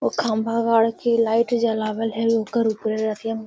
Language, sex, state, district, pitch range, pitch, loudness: Hindi, female, Bihar, Gaya, 220-230 Hz, 225 Hz, -21 LUFS